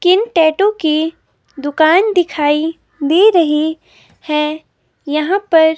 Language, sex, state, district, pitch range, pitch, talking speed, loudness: Hindi, female, Himachal Pradesh, Shimla, 305-360 Hz, 320 Hz, 105 wpm, -14 LUFS